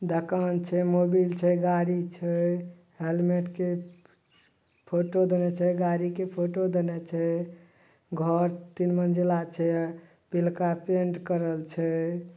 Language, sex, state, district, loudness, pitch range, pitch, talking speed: Maithili, male, Bihar, Madhepura, -27 LUFS, 170-180 Hz, 175 Hz, 115 wpm